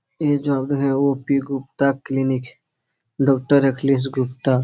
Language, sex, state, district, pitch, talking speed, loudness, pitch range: Hindi, male, Uttar Pradesh, Etah, 135 Hz, 130 wpm, -20 LUFS, 130-140 Hz